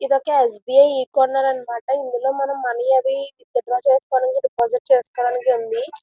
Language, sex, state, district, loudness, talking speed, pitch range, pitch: Telugu, female, Andhra Pradesh, Visakhapatnam, -19 LUFS, 170 wpm, 250-275 Hz, 265 Hz